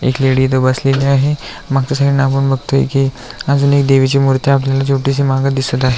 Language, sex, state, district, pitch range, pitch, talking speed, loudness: Marathi, male, Maharashtra, Aurangabad, 130-140 Hz, 135 Hz, 180 wpm, -14 LUFS